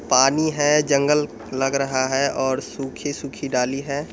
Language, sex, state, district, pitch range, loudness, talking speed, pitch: Hindi, male, Bihar, Muzaffarpur, 130-145 Hz, -21 LUFS, 145 wpm, 140 Hz